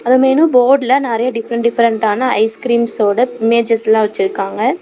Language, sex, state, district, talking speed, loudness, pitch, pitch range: Tamil, female, Tamil Nadu, Namakkal, 125 wpm, -14 LUFS, 235 Hz, 220-255 Hz